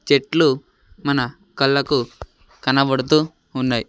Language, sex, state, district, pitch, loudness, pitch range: Telugu, male, Andhra Pradesh, Sri Satya Sai, 135 Hz, -20 LUFS, 130-145 Hz